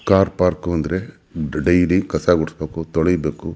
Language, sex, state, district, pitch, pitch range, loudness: Kannada, male, Karnataka, Mysore, 85 Hz, 80-90 Hz, -19 LUFS